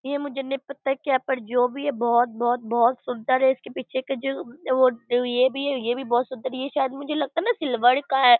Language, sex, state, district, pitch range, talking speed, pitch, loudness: Hindi, female, Bihar, Purnia, 245-275 Hz, 265 wpm, 260 Hz, -24 LUFS